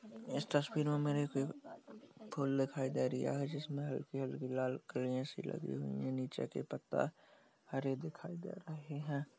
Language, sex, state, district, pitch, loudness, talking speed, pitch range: Hindi, male, Uttar Pradesh, Jalaun, 140 Hz, -40 LUFS, 180 wpm, 135-150 Hz